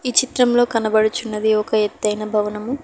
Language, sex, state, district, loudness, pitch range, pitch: Telugu, female, Telangana, Hyderabad, -18 LUFS, 210-245 Hz, 220 Hz